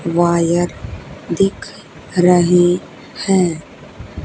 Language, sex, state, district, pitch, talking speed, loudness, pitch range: Hindi, female, Haryana, Charkhi Dadri, 175 Hz, 55 wpm, -16 LUFS, 170-180 Hz